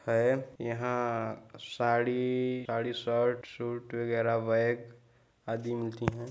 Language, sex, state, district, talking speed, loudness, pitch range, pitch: Hindi, male, Chhattisgarh, Balrampur, 125 wpm, -32 LUFS, 115-120 Hz, 120 Hz